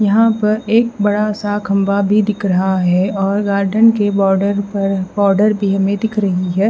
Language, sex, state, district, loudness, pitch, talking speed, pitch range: Hindi, female, Haryana, Rohtak, -15 LUFS, 200 Hz, 190 wpm, 195-210 Hz